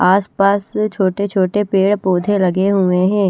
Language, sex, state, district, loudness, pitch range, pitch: Hindi, female, Haryana, Charkhi Dadri, -16 LUFS, 190-205 Hz, 195 Hz